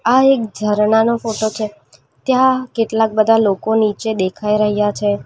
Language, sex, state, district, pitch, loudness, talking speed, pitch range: Gujarati, female, Gujarat, Valsad, 215 Hz, -16 LUFS, 150 wpm, 210-225 Hz